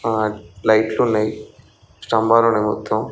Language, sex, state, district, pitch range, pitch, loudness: Telugu, male, Andhra Pradesh, Chittoor, 105-115 Hz, 110 Hz, -18 LUFS